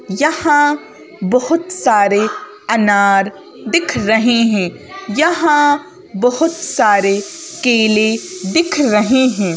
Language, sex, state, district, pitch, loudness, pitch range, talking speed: Hindi, female, Madhya Pradesh, Bhopal, 240 Hz, -14 LUFS, 205-315 Hz, 90 wpm